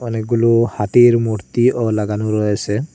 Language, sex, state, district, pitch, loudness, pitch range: Bengali, male, Assam, Hailakandi, 115 Hz, -16 LUFS, 105-120 Hz